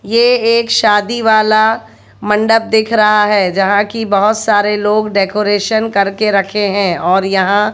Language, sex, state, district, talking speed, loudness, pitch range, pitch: Hindi, female, Bihar, West Champaran, 155 wpm, -12 LUFS, 200-220 Hz, 210 Hz